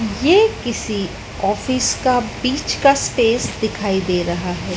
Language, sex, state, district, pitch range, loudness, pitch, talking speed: Hindi, female, Madhya Pradesh, Dhar, 195-255 Hz, -18 LUFS, 225 Hz, 140 wpm